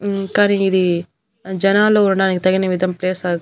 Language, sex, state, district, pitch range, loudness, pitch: Telugu, female, Andhra Pradesh, Annamaya, 185-200 Hz, -16 LUFS, 190 Hz